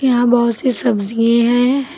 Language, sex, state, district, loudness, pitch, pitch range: Hindi, female, Uttar Pradesh, Lucknow, -15 LUFS, 240 Hz, 235-255 Hz